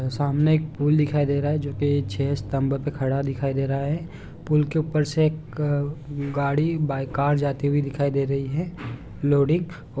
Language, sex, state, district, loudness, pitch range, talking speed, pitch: Hindi, male, Chhattisgarh, Bilaspur, -24 LUFS, 140-150 Hz, 175 wpm, 145 Hz